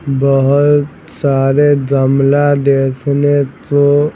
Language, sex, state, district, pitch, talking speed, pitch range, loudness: Hindi, male, Bihar, Patna, 140 Hz, 70 wpm, 135-145 Hz, -12 LUFS